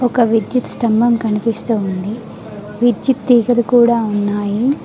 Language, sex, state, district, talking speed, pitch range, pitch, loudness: Telugu, female, Telangana, Mahabubabad, 110 wpm, 210-240 Hz, 230 Hz, -15 LUFS